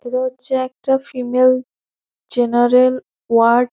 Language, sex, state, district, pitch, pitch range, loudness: Bengali, female, West Bengal, Paschim Medinipur, 255 Hz, 245-255 Hz, -16 LUFS